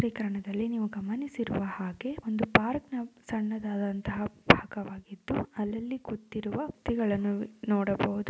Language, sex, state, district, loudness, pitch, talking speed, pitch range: Kannada, female, Karnataka, Shimoga, -31 LUFS, 215 Hz, 80 wpm, 200-230 Hz